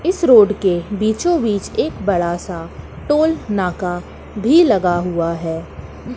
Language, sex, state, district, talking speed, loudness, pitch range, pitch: Hindi, female, Madhya Pradesh, Katni, 135 wpm, -17 LUFS, 175-265 Hz, 200 Hz